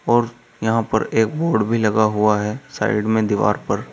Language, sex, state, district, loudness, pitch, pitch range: Hindi, male, Uttar Pradesh, Saharanpur, -19 LUFS, 110 Hz, 105-115 Hz